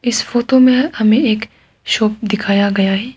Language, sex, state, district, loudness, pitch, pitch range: Hindi, female, Arunachal Pradesh, Papum Pare, -14 LUFS, 220 Hz, 210-245 Hz